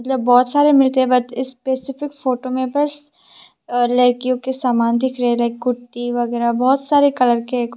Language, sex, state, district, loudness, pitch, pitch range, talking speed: Hindi, female, Tripura, West Tripura, -17 LUFS, 255 Hz, 245-265 Hz, 160 wpm